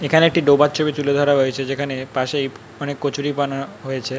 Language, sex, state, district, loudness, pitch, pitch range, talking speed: Bengali, male, West Bengal, North 24 Parganas, -19 LUFS, 140 Hz, 135-145 Hz, 170 wpm